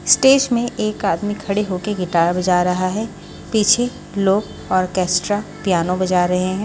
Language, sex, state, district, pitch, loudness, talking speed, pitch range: Hindi, female, Haryana, Charkhi Dadri, 190 Hz, -18 LUFS, 160 wpm, 180-210 Hz